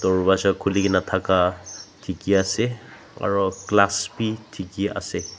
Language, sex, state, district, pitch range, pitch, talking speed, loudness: Nagamese, male, Nagaland, Dimapur, 95-105 Hz, 100 Hz, 110 wpm, -22 LUFS